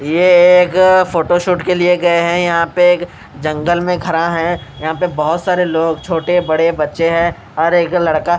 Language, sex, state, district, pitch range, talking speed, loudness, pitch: Hindi, male, Bihar, Katihar, 165-180 Hz, 185 wpm, -13 LUFS, 170 Hz